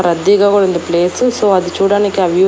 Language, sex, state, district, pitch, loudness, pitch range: Telugu, female, Andhra Pradesh, Annamaya, 190 Hz, -12 LUFS, 180-205 Hz